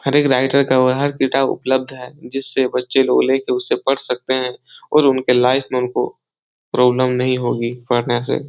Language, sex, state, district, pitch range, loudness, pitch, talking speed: Hindi, male, Uttar Pradesh, Etah, 125-135 Hz, -17 LUFS, 130 Hz, 175 wpm